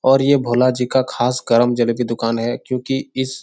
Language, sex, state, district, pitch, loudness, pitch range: Hindi, male, Bihar, Jahanabad, 125 Hz, -18 LUFS, 120-130 Hz